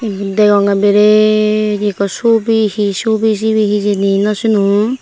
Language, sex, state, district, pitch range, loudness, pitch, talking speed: Chakma, female, Tripura, Unakoti, 205-220 Hz, -12 LUFS, 210 Hz, 130 wpm